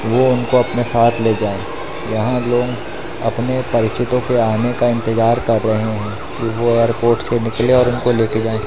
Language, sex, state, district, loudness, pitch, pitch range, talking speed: Hindi, male, Madhya Pradesh, Katni, -17 LUFS, 115 Hz, 110-120 Hz, 195 wpm